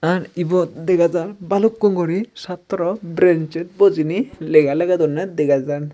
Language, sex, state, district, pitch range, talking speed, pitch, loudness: Chakma, male, Tripura, Dhalai, 160-185 Hz, 130 wpm, 175 Hz, -18 LUFS